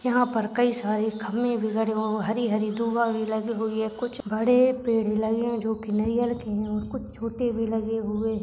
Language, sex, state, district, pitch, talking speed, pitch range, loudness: Hindi, female, Maharashtra, Nagpur, 225 Hz, 205 wpm, 220-235 Hz, -26 LUFS